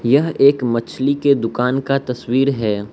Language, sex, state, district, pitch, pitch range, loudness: Hindi, male, Arunachal Pradesh, Lower Dibang Valley, 130 Hz, 120-140 Hz, -17 LUFS